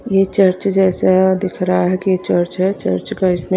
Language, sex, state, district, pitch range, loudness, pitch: Hindi, female, Haryana, Rohtak, 185-195 Hz, -16 LUFS, 185 Hz